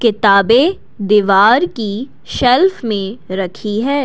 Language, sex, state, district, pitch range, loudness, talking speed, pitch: Hindi, female, Assam, Kamrup Metropolitan, 200-255 Hz, -13 LUFS, 105 wpm, 220 Hz